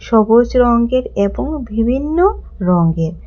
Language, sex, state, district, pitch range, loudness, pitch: Bengali, female, Tripura, West Tripura, 200-255 Hz, -15 LUFS, 235 Hz